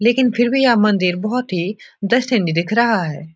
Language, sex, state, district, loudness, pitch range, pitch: Hindi, male, Bihar, Jahanabad, -17 LUFS, 180-240 Hz, 215 Hz